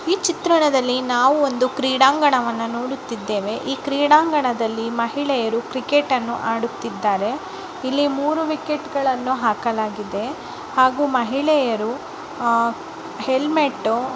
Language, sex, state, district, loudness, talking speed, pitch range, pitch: Kannada, female, Karnataka, Bijapur, -20 LUFS, 95 wpm, 230-290 Hz, 260 Hz